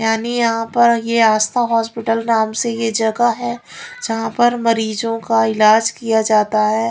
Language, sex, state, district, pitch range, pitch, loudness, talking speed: Hindi, female, Haryana, Rohtak, 220-235 Hz, 225 Hz, -16 LUFS, 165 wpm